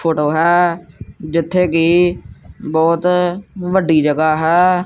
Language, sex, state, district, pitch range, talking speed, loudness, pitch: Punjabi, male, Punjab, Kapurthala, 160-180 Hz, 100 wpm, -15 LUFS, 170 Hz